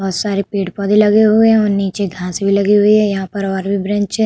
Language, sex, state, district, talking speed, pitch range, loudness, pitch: Hindi, female, Uttar Pradesh, Budaun, 265 wpm, 195-210 Hz, -14 LUFS, 200 Hz